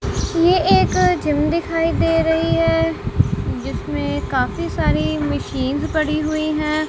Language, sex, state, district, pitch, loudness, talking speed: Hindi, female, Punjab, Kapurthala, 310 Hz, -19 LUFS, 120 wpm